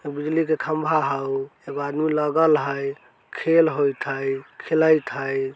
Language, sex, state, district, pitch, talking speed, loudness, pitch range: Bajjika, male, Bihar, Vaishali, 145 Hz, 150 wpm, -22 LUFS, 135-155 Hz